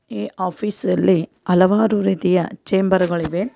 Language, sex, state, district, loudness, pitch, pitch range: Kannada, female, Karnataka, Koppal, -18 LUFS, 185 Hz, 180-195 Hz